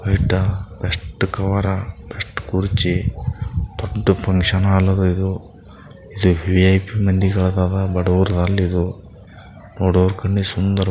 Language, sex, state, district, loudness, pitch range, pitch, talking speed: Kannada, male, Karnataka, Bijapur, -19 LUFS, 90-100 Hz, 95 Hz, 95 wpm